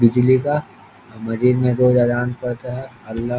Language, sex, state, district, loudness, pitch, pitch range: Hindi, male, Bihar, East Champaran, -18 LUFS, 125 Hz, 120-125 Hz